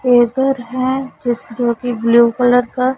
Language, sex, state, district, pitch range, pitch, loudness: Hindi, female, Punjab, Pathankot, 240-255 Hz, 245 Hz, -15 LUFS